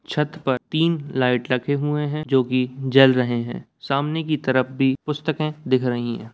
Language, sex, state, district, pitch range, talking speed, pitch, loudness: Hindi, male, Bihar, Samastipur, 125-150 Hz, 190 wpm, 135 Hz, -21 LUFS